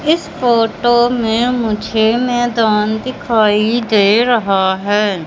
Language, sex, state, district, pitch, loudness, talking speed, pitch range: Hindi, male, Madhya Pradesh, Katni, 225 Hz, -14 LUFS, 100 wpm, 210-240 Hz